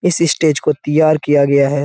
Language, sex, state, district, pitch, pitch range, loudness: Hindi, male, Bihar, Jahanabad, 150 Hz, 140-155 Hz, -14 LUFS